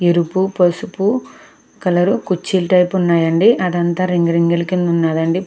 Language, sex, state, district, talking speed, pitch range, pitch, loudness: Telugu, female, Andhra Pradesh, Krishna, 110 wpm, 170-185 Hz, 180 Hz, -16 LUFS